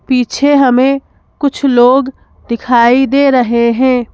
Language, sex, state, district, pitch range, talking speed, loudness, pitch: Hindi, female, Madhya Pradesh, Bhopal, 240-275 Hz, 115 wpm, -11 LUFS, 255 Hz